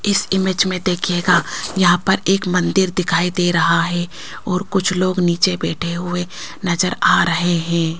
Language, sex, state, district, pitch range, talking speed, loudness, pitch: Hindi, female, Rajasthan, Jaipur, 170-185 Hz, 165 wpm, -17 LUFS, 180 Hz